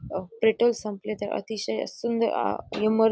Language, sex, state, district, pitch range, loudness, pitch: Marathi, female, Maharashtra, Dhule, 205-225 Hz, -27 LUFS, 220 Hz